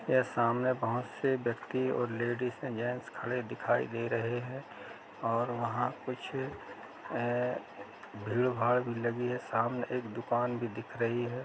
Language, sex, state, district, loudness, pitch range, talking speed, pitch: Hindi, male, Uttar Pradesh, Jalaun, -34 LUFS, 115-125 Hz, 145 wpm, 120 Hz